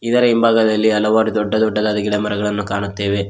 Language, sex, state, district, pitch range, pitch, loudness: Kannada, male, Karnataka, Koppal, 105-110 Hz, 105 Hz, -17 LUFS